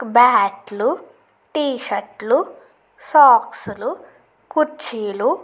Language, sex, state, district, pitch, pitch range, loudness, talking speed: Telugu, female, Andhra Pradesh, Chittoor, 245 Hz, 205-310 Hz, -18 LUFS, 100 wpm